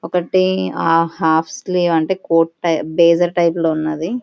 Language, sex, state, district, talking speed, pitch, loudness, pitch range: Telugu, female, Andhra Pradesh, Visakhapatnam, 140 wpm, 165 Hz, -16 LUFS, 160-175 Hz